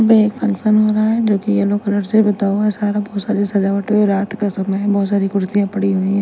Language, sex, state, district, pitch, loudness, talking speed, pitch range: Hindi, female, Chandigarh, Chandigarh, 205 Hz, -16 LUFS, 230 wpm, 200-210 Hz